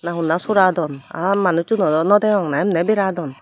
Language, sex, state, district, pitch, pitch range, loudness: Chakma, female, Tripura, Unakoti, 180 Hz, 165-200 Hz, -18 LUFS